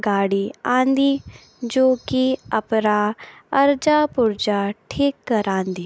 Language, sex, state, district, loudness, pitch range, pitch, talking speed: Garhwali, female, Uttarakhand, Tehri Garhwal, -20 LUFS, 205-270 Hz, 235 Hz, 90 wpm